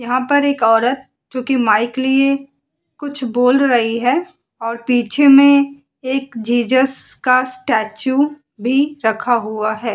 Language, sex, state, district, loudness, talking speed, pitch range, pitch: Hindi, female, Uttar Pradesh, Muzaffarnagar, -16 LUFS, 140 wpm, 230-275 Hz, 255 Hz